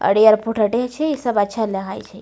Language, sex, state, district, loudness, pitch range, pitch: Maithili, female, Bihar, Samastipur, -18 LUFS, 205-240 Hz, 220 Hz